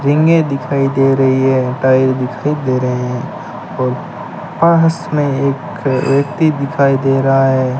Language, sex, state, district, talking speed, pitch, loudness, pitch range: Hindi, male, Rajasthan, Bikaner, 145 wpm, 135 Hz, -14 LUFS, 130-150 Hz